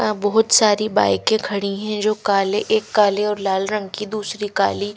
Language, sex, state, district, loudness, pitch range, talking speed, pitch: Hindi, female, Himachal Pradesh, Shimla, -19 LUFS, 200-215 Hz, 180 wpm, 210 Hz